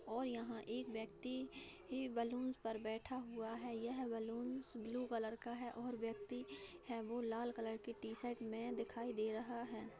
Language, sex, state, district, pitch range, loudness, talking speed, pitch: Hindi, female, Bihar, Begusarai, 225-245 Hz, -46 LUFS, 175 wpm, 235 Hz